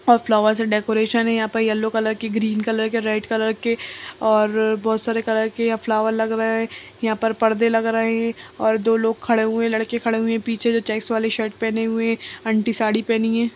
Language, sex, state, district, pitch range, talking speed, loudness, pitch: Kumaoni, male, Uttarakhand, Uttarkashi, 220-230 Hz, 240 wpm, -21 LUFS, 225 Hz